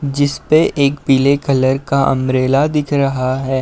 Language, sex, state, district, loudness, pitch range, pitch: Hindi, male, Uttar Pradesh, Budaun, -15 LUFS, 130-145 Hz, 140 Hz